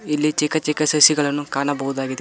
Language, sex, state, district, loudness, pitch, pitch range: Kannada, male, Karnataka, Koppal, -18 LUFS, 150 Hz, 140-150 Hz